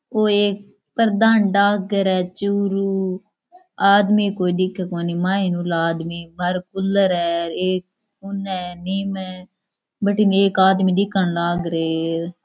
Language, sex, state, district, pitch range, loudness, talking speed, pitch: Rajasthani, female, Rajasthan, Churu, 180-200 Hz, -20 LUFS, 140 wpm, 190 Hz